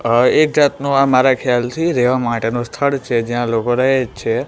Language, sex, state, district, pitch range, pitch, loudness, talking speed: Gujarati, male, Gujarat, Gandhinagar, 120-135 Hz, 125 Hz, -16 LUFS, 190 wpm